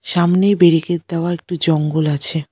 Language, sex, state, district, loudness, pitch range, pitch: Bengali, female, West Bengal, Alipurduar, -16 LUFS, 155-175 Hz, 170 Hz